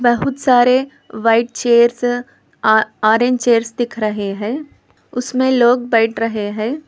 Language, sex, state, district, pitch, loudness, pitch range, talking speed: Hindi, female, Telangana, Hyderabad, 240 Hz, -16 LUFS, 225-250 Hz, 120 wpm